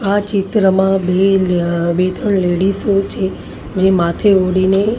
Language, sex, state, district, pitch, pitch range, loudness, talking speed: Gujarati, female, Maharashtra, Mumbai Suburban, 190 Hz, 185-195 Hz, -15 LUFS, 130 wpm